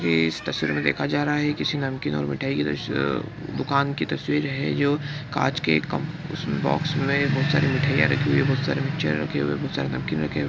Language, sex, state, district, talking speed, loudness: Hindi, male, Bihar, East Champaran, 240 wpm, -24 LUFS